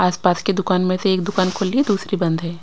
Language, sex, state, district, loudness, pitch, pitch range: Hindi, female, Himachal Pradesh, Shimla, -19 LUFS, 185 Hz, 180-195 Hz